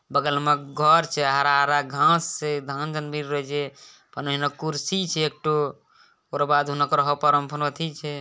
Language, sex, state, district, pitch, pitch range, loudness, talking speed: Maithili, male, Bihar, Bhagalpur, 145 Hz, 145-150 Hz, -23 LUFS, 145 wpm